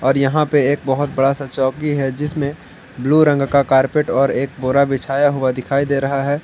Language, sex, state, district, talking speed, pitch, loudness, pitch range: Hindi, male, Jharkhand, Palamu, 215 wpm, 140 Hz, -17 LUFS, 135-145 Hz